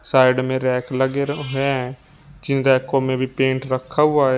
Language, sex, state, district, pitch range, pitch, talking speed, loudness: Hindi, male, Uttar Pradesh, Shamli, 130-140 Hz, 130 Hz, 190 wpm, -20 LUFS